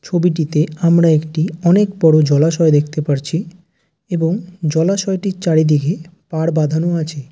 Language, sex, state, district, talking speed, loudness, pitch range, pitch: Bengali, male, West Bengal, Jalpaiguri, 115 wpm, -16 LUFS, 155-175 Hz, 165 Hz